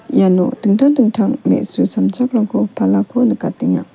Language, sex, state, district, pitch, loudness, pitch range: Garo, female, Meghalaya, West Garo Hills, 225 Hz, -15 LUFS, 190-250 Hz